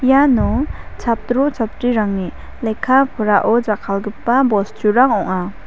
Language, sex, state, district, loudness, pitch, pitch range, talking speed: Garo, female, Meghalaya, South Garo Hills, -17 LUFS, 225 Hz, 205-255 Hz, 65 wpm